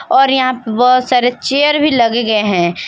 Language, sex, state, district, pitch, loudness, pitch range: Hindi, female, Jharkhand, Palamu, 250 Hz, -12 LUFS, 230-270 Hz